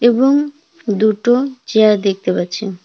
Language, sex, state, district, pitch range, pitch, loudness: Bengali, female, West Bengal, Cooch Behar, 205-265 Hz, 225 Hz, -15 LUFS